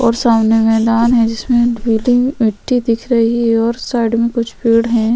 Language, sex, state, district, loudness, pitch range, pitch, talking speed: Hindi, female, Chhattisgarh, Sukma, -14 LUFS, 225-240 Hz, 230 Hz, 175 wpm